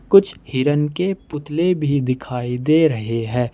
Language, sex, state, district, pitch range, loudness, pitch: Hindi, male, Jharkhand, Ranchi, 125-160 Hz, -19 LUFS, 145 Hz